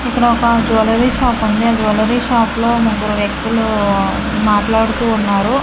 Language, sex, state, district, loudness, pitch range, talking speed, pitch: Telugu, female, Andhra Pradesh, Manyam, -14 LUFS, 215-235 Hz, 140 wpm, 225 Hz